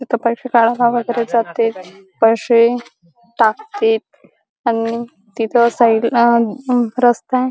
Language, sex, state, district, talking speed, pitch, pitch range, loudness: Marathi, female, Maharashtra, Chandrapur, 110 wpm, 235 Hz, 230-240 Hz, -16 LUFS